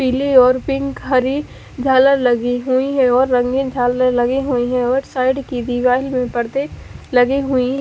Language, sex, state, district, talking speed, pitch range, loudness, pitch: Hindi, female, Haryana, Charkhi Dadri, 170 wpm, 245-270 Hz, -16 LUFS, 255 Hz